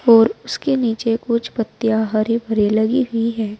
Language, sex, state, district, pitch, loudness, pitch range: Hindi, female, Uttar Pradesh, Saharanpur, 230 Hz, -18 LUFS, 220-235 Hz